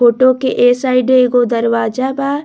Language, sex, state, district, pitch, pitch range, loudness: Bhojpuri, female, Bihar, Muzaffarpur, 255 Hz, 240-260 Hz, -13 LUFS